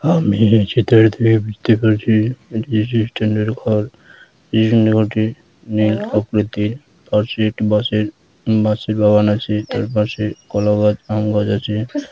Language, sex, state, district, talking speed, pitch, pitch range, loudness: Bengali, male, West Bengal, Dakshin Dinajpur, 85 wpm, 110 Hz, 105-110 Hz, -17 LUFS